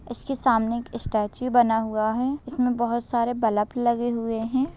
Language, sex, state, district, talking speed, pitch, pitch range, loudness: Hindi, male, Bihar, Gopalganj, 175 wpm, 235 Hz, 225-250 Hz, -24 LUFS